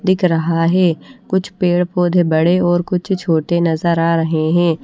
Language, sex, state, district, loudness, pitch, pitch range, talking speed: Hindi, female, Odisha, Nuapada, -16 LUFS, 175 Hz, 165-180 Hz, 175 wpm